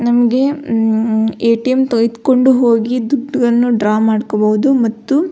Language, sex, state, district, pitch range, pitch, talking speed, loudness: Kannada, female, Karnataka, Belgaum, 225-260 Hz, 240 Hz, 100 wpm, -14 LUFS